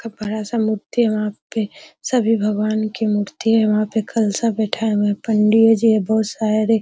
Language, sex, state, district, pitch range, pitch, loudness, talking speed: Hindi, female, Bihar, Araria, 210-225 Hz, 220 Hz, -18 LUFS, 200 wpm